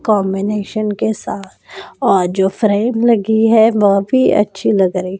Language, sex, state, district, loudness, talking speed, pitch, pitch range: Hindi, female, Madhya Pradesh, Dhar, -14 LUFS, 140 wpm, 210 Hz, 195-220 Hz